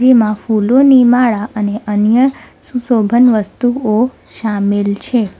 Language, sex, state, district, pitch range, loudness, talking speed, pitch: Gujarati, female, Gujarat, Valsad, 210-250 Hz, -13 LUFS, 100 wpm, 230 Hz